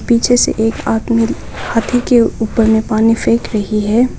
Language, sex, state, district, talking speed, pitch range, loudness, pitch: Hindi, female, Nagaland, Kohima, 170 wpm, 220-235 Hz, -14 LUFS, 230 Hz